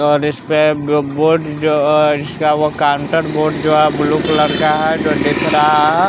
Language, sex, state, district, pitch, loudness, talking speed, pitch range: Hindi, male, Bihar, West Champaran, 150 Hz, -14 LUFS, 205 wpm, 150-155 Hz